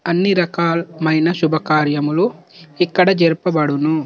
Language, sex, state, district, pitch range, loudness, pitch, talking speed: Telugu, male, Telangana, Nalgonda, 155-175 Hz, -16 LUFS, 165 Hz, 90 wpm